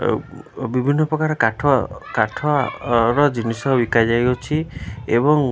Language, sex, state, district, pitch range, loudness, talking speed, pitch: Odia, male, Odisha, Khordha, 120-150 Hz, -19 LUFS, 120 wpm, 130 Hz